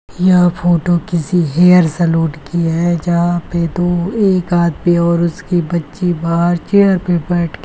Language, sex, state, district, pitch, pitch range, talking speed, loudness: Hindi, male, Uttar Pradesh, Varanasi, 175 Hz, 170-175 Hz, 165 wpm, -14 LUFS